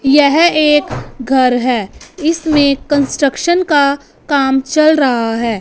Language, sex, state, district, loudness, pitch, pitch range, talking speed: Hindi, female, Punjab, Fazilka, -13 LUFS, 280 Hz, 265-305 Hz, 120 wpm